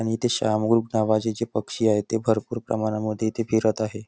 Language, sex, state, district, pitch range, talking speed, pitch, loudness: Marathi, male, Maharashtra, Chandrapur, 110-115 Hz, 175 wpm, 110 Hz, -24 LUFS